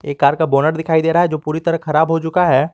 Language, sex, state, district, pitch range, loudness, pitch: Hindi, male, Jharkhand, Garhwa, 155-165 Hz, -16 LUFS, 160 Hz